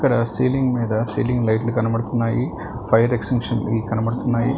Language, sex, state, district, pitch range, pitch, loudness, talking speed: Telugu, male, Telangana, Hyderabad, 115-125 Hz, 115 Hz, -21 LUFS, 120 wpm